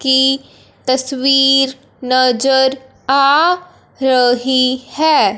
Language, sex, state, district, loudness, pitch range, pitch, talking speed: Hindi, male, Punjab, Fazilka, -13 LUFS, 260-275 Hz, 265 Hz, 65 wpm